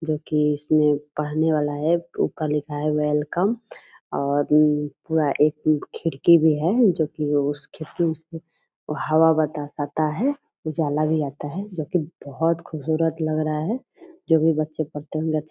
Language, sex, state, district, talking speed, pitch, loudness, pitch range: Hindi, female, Bihar, Purnia, 155 wpm, 155 Hz, -23 LUFS, 150-165 Hz